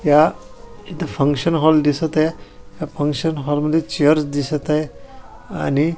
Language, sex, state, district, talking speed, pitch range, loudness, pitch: Marathi, male, Maharashtra, Washim, 150 wpm, 145-160 Hz, -18 LUFS, 150 Hz